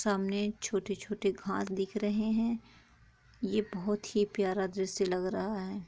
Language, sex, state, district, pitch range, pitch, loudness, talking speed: Hindi, female, Chhattisgarh, Korba, 195-210 Hz, 205 Hz, -33 LUFS, 145 wpm